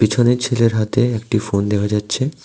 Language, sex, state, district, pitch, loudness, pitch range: Bengali, male, Tripura, West Tripura, 115 Hz, -18 LUFS, 105-125 Hz